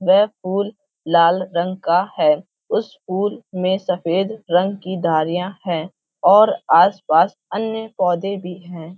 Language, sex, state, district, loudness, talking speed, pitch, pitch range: Hindi, female, Uttar Pradesh, Hamirpur, -19 LUFS, 135 wpm, 185 Hz, 175-200 Hz